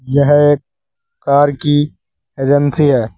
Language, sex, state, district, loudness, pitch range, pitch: Hindi, male, Uttar Pradesh, Saharanpur, -13 LUFS, 135-145 Hz, 145 Hz